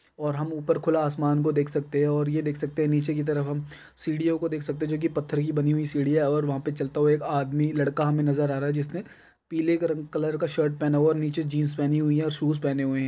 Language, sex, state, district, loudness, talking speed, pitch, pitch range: Hindi, male, Bihar, Bhagalpur, -26 LUFS, 280 wpm, 150 Hz, 145-155 Hz